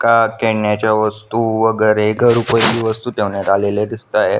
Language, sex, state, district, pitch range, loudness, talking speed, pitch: Marathi, male, Maharashtra, Solapur, 105-115 Hz, -15 LUFS, 135 wpm, 110 Hz